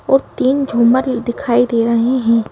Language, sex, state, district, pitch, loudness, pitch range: Hindi, female, Madhya Pradesh, Bhopal, 240 Hz, -15 LUFS, 235-260 Hz